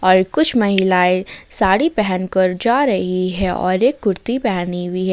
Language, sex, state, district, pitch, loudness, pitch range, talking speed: Hindi, female, Jharkhand, Ranchi, 185 Hz, -17 LUFS, 185-220 Hz, 175 wpm